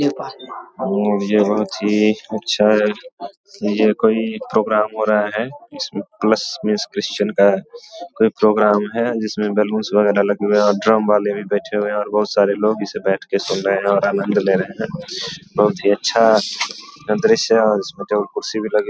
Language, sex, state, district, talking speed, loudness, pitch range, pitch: Hindi, male, Bihar, Samastipur, 190 wpm, -18 LUFS, 105-110 Hz, 105 Hz